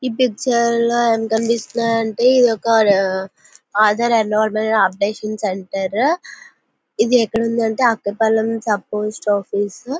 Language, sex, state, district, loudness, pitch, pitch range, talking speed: Telugu, female, Andhra Pradesh, Visakhapatnam, -17 LUFS, 225 Hz, 210-235 Hz, 120 wpm